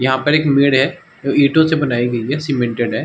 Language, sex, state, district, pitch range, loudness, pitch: Hindi, male, Uttar Pradesh, Varanasi, 130-150 Hz, -15 LUFS, 140 Hz